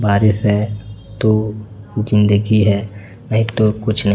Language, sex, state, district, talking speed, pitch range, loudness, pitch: Hindi, male, Chhattisgarh, Raipur, 145 wpm, 105-110 Hz, -16 LUFS, 105 Hz